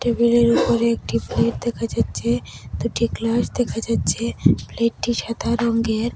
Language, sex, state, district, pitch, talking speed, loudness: Bengali, female, Assam, Hailakandi, 230 Hz, 125 wpm, -21 LUFS